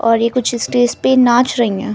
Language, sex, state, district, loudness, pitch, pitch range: Hindi, female, Delhi, New Delhi, -14 LUFS, 240 Hz, 230-250 Hz